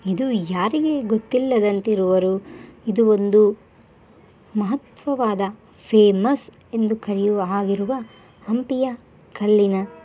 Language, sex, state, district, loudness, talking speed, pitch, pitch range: Kannada, female, Karnataka, Bellary, -20 LUFS, 80 wpm, 215 Hz, 200-240 Hz